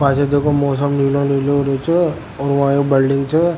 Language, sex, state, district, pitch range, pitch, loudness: Rajasthani, male, Rajasthan, Churu, 140-145 Hz, 140 Hz, -16 LUFS